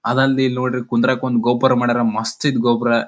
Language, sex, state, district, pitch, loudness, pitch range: Kannada, male, Karnataka, Dharwad, 120 Hz, -18 LUFS, 120-130 Hz